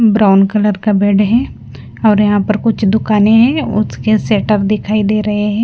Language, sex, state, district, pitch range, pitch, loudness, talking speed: Hindi, female, Punjab, Fazilka, 205-215 Hz, 210 Hz, -12 LUFS, 180 wpm